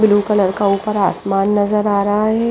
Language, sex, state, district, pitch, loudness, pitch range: Hindi, female, Chandigarh, Chandigarh, 205 Hz, -16 LUFS, 195-210 Hz